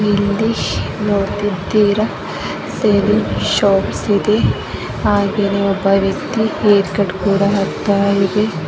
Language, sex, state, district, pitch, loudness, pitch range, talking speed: Kannada, female, Karnataka, Bijapur, 205 Hz, -16 LUFS, 200-210 Hz, 90 wpm